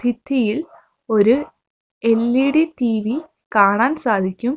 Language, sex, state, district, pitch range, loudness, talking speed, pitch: Malayalam, female, Kerala, Kozhikode, 220-285 Hz, -18 LUFS, 80 wpm, 245 Hz